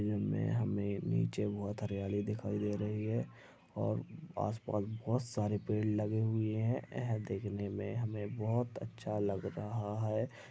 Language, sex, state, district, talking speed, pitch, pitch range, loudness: Hindi, male, Maharashtra, Sindhudurg, 150 wpm, 105 Hz, 100-110 Hz, -37 LUFS